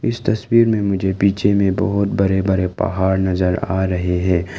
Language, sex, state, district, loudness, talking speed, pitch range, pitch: Hindi, male, Arunachal Pradesh, Lower Dibang Valley, -18 LUFS, 185 wpm, 95-100 Hz, 95 Hz